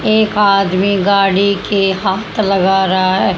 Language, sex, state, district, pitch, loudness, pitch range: Hindi, male, Haryana, Jhajjar, 195 Hz, -13 LUFS, 190-200 Hz